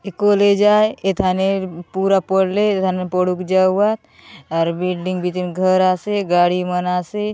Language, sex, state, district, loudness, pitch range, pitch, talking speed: Halbi, female, Chhattisgarh, Bastar, -18 LUFS, 180-200 Hz, 185 Hz, 155 wpm